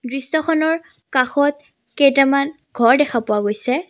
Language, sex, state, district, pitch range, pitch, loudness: Assamese, female, Assam, Sonitpur, 250-295 Hz, 275 Hz, -18 LUFS